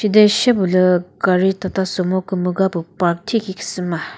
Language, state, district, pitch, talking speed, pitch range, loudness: Chakhesang, Nagaland, Dimapur, 185 Hz, 160 wpm, 180-195 Hz, -17 LUFS